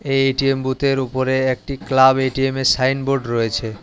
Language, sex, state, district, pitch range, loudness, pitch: Bengali, male, West Bengal, Alipurduar, 130-135 Hz, -18 LUFS, 130 Hz